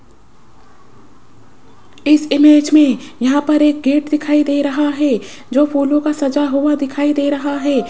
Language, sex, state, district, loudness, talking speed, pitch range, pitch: Hindi, female, Rajasthan, Jaipur, -14 LUFS, 150 wpm, 280-295 Hz, 290 Hz